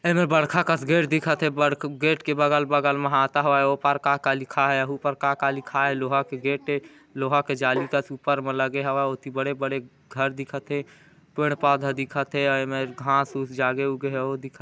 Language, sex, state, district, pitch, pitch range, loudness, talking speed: Hindi, male, Chhattisgarh, Korba, 140 Hz, 135-145 Hz, -24 LUFS, 215 wpm